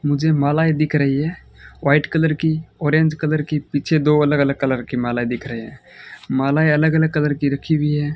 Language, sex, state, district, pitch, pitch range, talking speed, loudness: Hindi, male, Rajasthan, Bikaner, 150 Hz, 140-155 Hz, 215 wpm, -18 LUFS